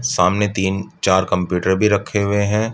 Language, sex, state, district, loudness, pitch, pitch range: Hindi, male, Uttar Pradesh, Budaun, -18 LUFS, 100 Hz, 95-105 Hz